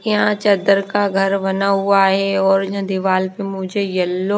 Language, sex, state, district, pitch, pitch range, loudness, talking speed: Hindi, female, Odisha, Nuapada, 195 Hz, 195-200 Hz, -17 LUFS, 190 wpm